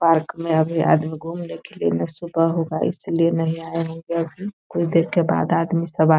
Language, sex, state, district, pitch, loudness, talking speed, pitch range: Hindi, female, Bihar, Saran, 165 Hz, -21 LUFS, 145 wpm, 160-170 Hz